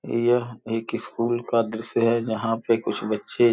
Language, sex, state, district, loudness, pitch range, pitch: Hindi, male, Uttar Pradesh, Gorakhpur, -24 LUFS, 115-120 Hz, 115 Hz